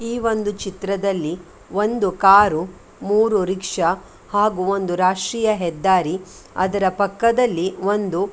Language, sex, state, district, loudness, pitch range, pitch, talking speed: Kannada, female, Karnataka, Dakshina Kannada, -19 LUFS, 185-205 Hz, 195 Hz, 110 wpm